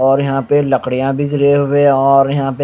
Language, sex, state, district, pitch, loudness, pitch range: Hindi, male, Punjab, Kapurthala, 140 Hz, -13 LUFS, 135-140 Hz